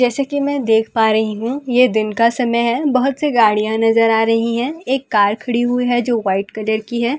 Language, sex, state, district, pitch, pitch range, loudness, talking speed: Hindi, female, Delhi, New Delhi, 235 Hz, 220-250 Hz, -16 LUFS, 275 wpm